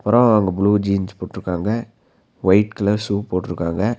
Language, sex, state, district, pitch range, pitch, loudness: Tamil, male, Tamil Nadu, Nilgiris, 95-110 Hz, 100 Hz, -19 LUFS